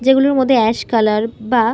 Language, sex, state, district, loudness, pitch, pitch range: Bengali, female, West Bengal, North 24 Parganas, -15 LUFS, 235 Hz, 220-265 Hz